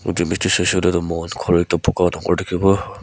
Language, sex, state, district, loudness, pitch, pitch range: Nagamese, male, Nagaland, Kohima, -18 LUFS, 90 Hz, 85-95 Hz